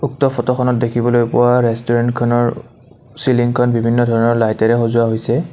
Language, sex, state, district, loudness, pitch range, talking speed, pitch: Assamese, male, Assam, Kamrup Metropolitan, -15 LUFS, 115-125 Hz, 120 wpm, 120 Hz